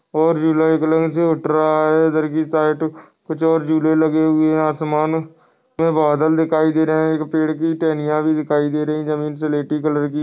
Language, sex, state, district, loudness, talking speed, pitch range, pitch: Hindi, male, Goa, North and South Goa, -18 LUFS, 215 wpm, 155-160 Hz, 155 Hz